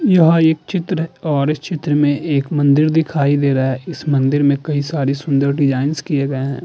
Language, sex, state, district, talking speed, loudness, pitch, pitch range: Hindi, male, Uttar Pradesh, Jalaun, 205 wpm, -16 LUFS, 145 Hz, 140-160 Hz